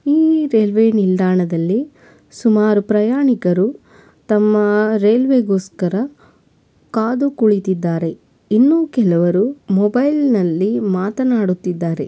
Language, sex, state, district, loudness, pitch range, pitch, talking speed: Kannada, female, Karnataka, Belgaum, -16 LUFS, 190-250 Hz, 215 Hz, 65 wpm